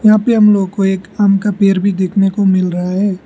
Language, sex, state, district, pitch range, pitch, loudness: Hindi, male, Arunachal Pradesh, Lower Dibang Valley, 190-205 Hz, 195 Hz, -13 LUFS